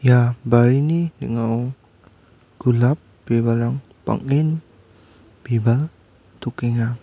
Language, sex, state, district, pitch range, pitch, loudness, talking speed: Garo, male, Meghalaya, West Garo Hills, 110-125 Hz, 120 Hz, -20 LUFS, 60 wpm